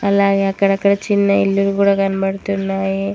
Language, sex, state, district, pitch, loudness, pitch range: Telugu, female, Telangana, Mahabubabad, 195 Hz, -16 LUFS, 195-200 Hz